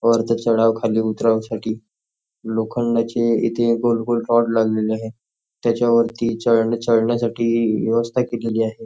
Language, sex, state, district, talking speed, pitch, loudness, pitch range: Marathi, male, Maharashtra, Nagpur, 120 wpm, 115 Hz, -19 LUFS, 110-115 Hz